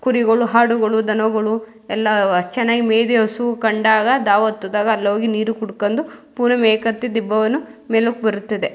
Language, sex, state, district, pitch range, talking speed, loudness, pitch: Kannada, female, Karnataka, Mysore, 215-235 Hz, 130 wpm, -17 LUFS, 220 Hz